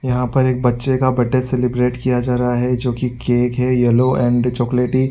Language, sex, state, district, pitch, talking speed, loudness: Hindi, male, Chhattisgarh, Korba, 125 Hz, 225 wpm, -17 LUFS